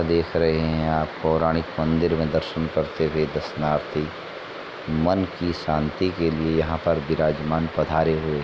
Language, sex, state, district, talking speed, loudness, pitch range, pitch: Hindi, male, Uttar Pradesh, Etah, 155 wpm, -23 LUFS, 75-80 Hz, 80 Hz